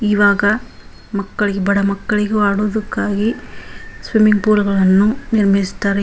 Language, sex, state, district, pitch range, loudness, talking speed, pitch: Kannada, female, Karnataka, Bijapur, 200-210 Hz, -16 LUFS, 100 wpm, 205 Hz